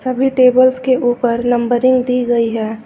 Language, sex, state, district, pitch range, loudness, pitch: Hindi, female, Uttar Pradesh, Lucknow, 240-255 Hz, -14 LUFS, 250 Hz